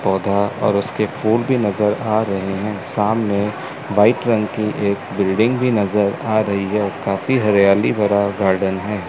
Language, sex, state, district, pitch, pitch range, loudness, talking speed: Hindi, male, Chandigarh, Chandigarh, 105 Hz, 100-110 Hz, -18 LUFS, 165 wpm